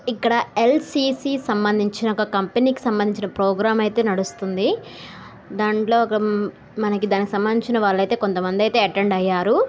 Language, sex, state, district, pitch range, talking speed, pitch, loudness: Telugu, female, Telangana, Karimnagar, 200-235 Hz, 115 wpm, 215 Hz, -20 LUFS